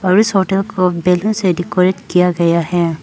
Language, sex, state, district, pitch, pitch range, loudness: Hindi, female, Arunachal Pradesh, Papum Pare, 180 Hz, 175-195 Hz, -15 LUFS